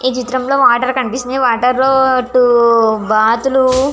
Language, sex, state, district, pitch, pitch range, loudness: Telugu, female, Andhra Pradesh, Visakhapatnam, 255 Hz, 235-260 Hz, -12 LUFS